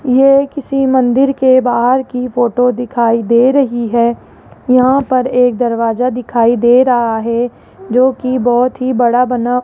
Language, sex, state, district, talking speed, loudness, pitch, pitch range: Hindi, female, Rajasthan, Jaipur, 155 wpm, -12 LUFS, 250 Hz, 240-255 Hz